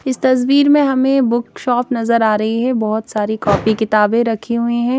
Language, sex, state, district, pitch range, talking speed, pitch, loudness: Hindi, female, Chandigarh, Chandigarh, 220-255 Hz, 180 wpm, 235 Hz, -15 LUFS